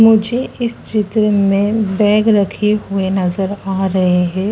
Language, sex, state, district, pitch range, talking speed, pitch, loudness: Hindi, female, Madhya Pradesh, Dhar, 190-215 Hz, 145 wpm, 205 Hz, -15 LUFS